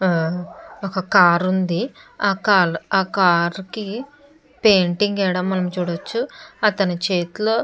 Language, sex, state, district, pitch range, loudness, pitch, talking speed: Telugu, female, Andhra Pradesh, Chittoor, 180-215 Hz, -19 LUFS, 190 Hz, 120 wpm